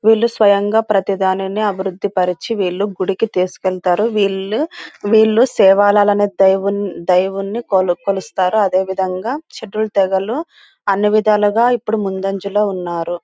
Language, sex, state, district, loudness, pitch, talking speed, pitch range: Telugu, female, Andhra Pradesh, Anantapur, -16 LUFS, 200 Hz, 95 wpm, 190-215 Hz